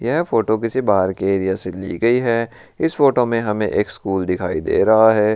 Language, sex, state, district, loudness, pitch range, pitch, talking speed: Marwari, male, Rajasthan, Churu, -18 LUFS, 95-115 Hz, 110 Hz, 225 wpm